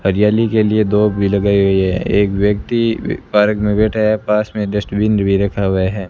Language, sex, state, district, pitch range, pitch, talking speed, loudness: Hindi, male, Rajasthan, Bikaner, 100-110 Hz, 105 Hz, 205 wpm, -15 LUFS